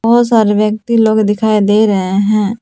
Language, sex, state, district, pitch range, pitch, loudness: Hindi, female, Jharkhand, Palamu, 210-225 Hz, 215 Hz, -12 LUFS